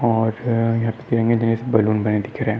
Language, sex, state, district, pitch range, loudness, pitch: Hindi, male, Maharashtra, Nagpur, 110-115 Hz, -20 LUFS, 115 Hz